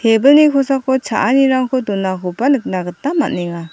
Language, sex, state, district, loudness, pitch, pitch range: Garo, female, Meghalaya, South Garo Hills, -15 LUFS, 260 Hz, 190-275 Hz